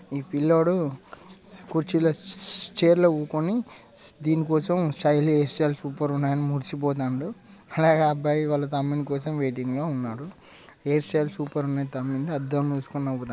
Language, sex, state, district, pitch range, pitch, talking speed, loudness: Telugu, male, Telangana, Karimnagar, 140-160 Hz, 150 Hz, 155 wpm, -25 LUFS